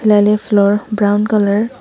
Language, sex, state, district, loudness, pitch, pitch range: Wancho, female, Arunachal Pradesh, Longding, -14 LUFS, 210 Hz, 205-215 Hz